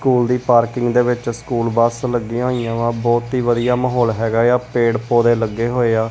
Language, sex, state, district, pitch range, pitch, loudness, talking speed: Punjabi, male, Punjab, Kapurthala, 115-125 Hz, 120 Hz, -17 LUFS, 205 wpm